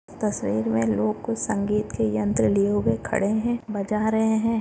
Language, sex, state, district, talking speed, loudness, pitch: Hindi, female, Maharashtra, Solapur, 180 wpm, -24 LUFS, 205 Hz